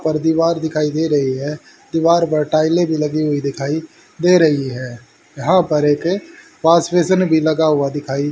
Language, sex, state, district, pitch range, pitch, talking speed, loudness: Hindi, male, Haryana, Charkhi Dadri, 145-165 Hz, 155 Hz, 175 wpm, -16 LUFS